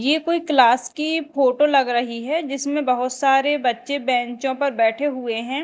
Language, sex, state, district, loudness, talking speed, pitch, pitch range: Hindi, female, Madhya Pradesh, Dhar, -20 LUFS, 180 wpm, 270 Hz, 250-290 Hz